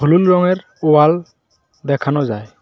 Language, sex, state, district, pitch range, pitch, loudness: Bengali, male, West Bengal, Cooch Behar, 140-175 Hz, 150 Hz, -15 LUFS